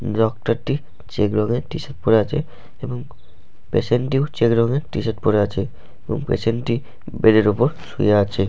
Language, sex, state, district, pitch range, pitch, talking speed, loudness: Bengali, male, West Bengal, Malda, 105-125 Hz, 115 Hz, 175 wpm, -20 LUFS